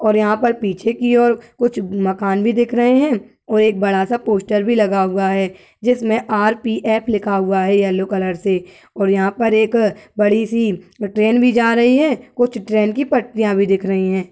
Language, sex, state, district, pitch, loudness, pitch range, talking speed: Hindi, female, Uttar Pradesh, Budaun, 215 Hz, -17 LUFS, 195-235 Hz, 200 wpm